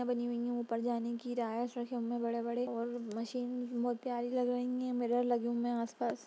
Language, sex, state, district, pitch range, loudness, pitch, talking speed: Hindi, female, Uttar Pradesh, Budaun, 235-245 Hz, -36 LUFS, 240 Hz, 180 wpm